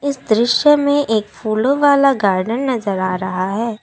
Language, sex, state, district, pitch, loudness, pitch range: Hindi, female, Assam, Kamrup Metropolitan, 230 Hz, -16 LUFS, 205-275 Hz